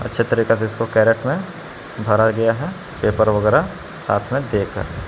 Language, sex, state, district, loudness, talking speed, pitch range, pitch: Hindi, male, Jharkhand, Palamu, -19 LUFS, 175 wpm, 105-125 Hz, 115 Hz